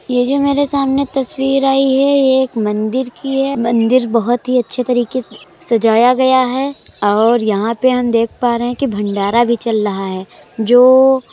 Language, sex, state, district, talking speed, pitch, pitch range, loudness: Hindi, female, Uttar Pradesh, Budaun, 190 wpm, 245 Hz, 230-265 Hz, -14 LUFS